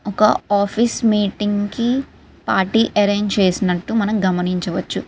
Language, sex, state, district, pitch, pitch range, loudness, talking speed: Telugu, female, Telangana, Karimnagar, 205 Hz, 195-225 Hz, -18 LUFS, 120 wpm